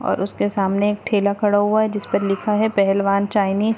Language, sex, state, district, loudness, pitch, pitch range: Hindi, female, Maharashtra, Dhule, -19 LUFS, 205 Hz, 200-210 Hz